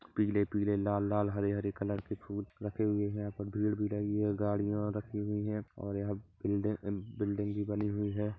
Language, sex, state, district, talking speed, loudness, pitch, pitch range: Hindi, male, Chhattisgarh, Bilaspur, 200 wpm, -35 LUFS, 105 Hz, 100-105 Hz